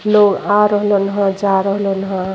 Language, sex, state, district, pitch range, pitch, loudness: Bhojpuri, female, Uttar Pradesh, Gorakhpur, 195-205 Hz, 200 Hz, -15 LUFS